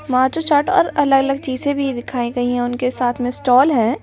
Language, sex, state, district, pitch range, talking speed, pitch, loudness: Hindi, female, Delhi, New Delhi, 245-285 Hz, 225 wpm, 260 Hz, -17 LUFS